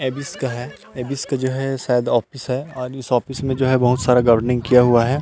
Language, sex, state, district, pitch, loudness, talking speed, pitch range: Hindi, male, Chhattisgarh, Rajnandgaon, 130 Hz, -19 LUFS, 240 wpm, 125-135 Hz